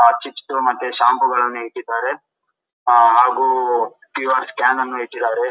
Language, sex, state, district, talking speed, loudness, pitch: Kannada, male, Karnataka, Dharwad, 120 wpm, -17 LUFS, 125 Hz